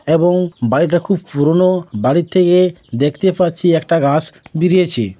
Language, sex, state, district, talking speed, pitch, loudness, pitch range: Bengali, male, West Bengal, Jhargram, 140 wpm, 170 Hz, -14 LUFS, 145-180 Hz